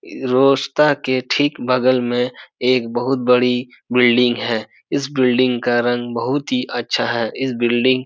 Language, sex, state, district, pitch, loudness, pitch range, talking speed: Hindi, male, Bihar, Supaul, 125 Hz, -18 LUFS, 120-130 Hz, 155 wpm